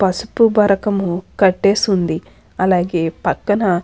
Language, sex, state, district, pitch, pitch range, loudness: Telugu, female, Andhra Pradesh, Anantapur, 195 Hz, 180-205 Hz, -16 LUFS